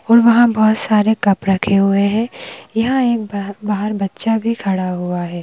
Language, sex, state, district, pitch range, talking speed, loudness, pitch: Hindi, female, Madhya Pradesh, Bhopal, 195-225 Hz, 185 wpm, -16 LUFS, 210 Hz